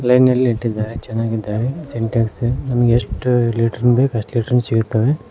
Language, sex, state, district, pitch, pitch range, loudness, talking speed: Kannada, male, Karnataka, Koppal, 120 Hz, 115-125 Hz, -18 LUFS, 125 wpm